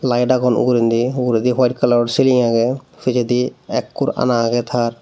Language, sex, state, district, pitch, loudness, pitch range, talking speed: Chakma, male, Tripura, Dhalai, 125 Hz, -17 LUFS, 120-125 Hz, 155 wpm